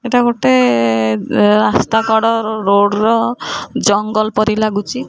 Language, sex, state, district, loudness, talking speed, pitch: Odia, female, Odisha, Khordha, -14 LUFS, 120 wpm, 215 Hz